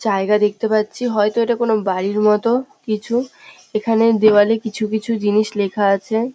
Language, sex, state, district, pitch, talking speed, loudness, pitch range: Bengali, female, West Bengal, North 24 Parganas, 215 Hz, 150 wpm, -17 LUFS, 210-230 Hz